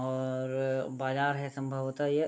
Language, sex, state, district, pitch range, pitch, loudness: Hindi, male, Bihar, Gopalganj, 130-140 Hz, 135 Hz, -33 LUFS